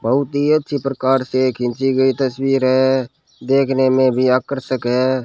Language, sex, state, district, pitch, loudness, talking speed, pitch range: Hindi, male, Rajasthan, Bikaner, 130 Hz, -17 LUFS, 160 wpm, 130-135 Hz